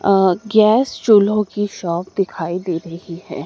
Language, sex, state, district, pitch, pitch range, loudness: Hindi, female, Madhya Pradesh, Dhar, 190 Hz, 170-210 Hz, -17 LUFS